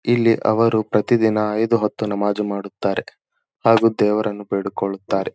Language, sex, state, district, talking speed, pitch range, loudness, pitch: Kannada, male, Karnataka, Dharwad, 110 wpm, 105-115 Hz, -19 LUFS, 105 Hz